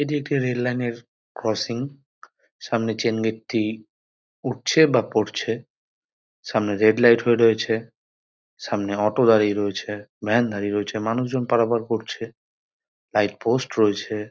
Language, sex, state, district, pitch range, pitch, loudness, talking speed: Bengali, male, West Bengal, North 24 Parganas, 105-120 Hz, 115 Hz, -22 LUFS, 125 wpm